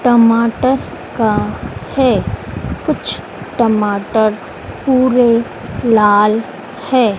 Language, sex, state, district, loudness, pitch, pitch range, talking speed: Hindi, female, Madhya Pradesh, Dhar, -14 LUFS, 230 Hz, 215-255 Hz, 65 wpm